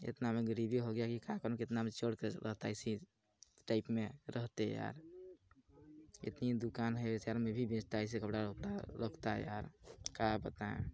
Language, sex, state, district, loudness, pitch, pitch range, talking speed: Hindi, male, Chhattisgarh, Balrampur, -41 LUFS, 115 Hz, 110-120 Hz, 160 wpm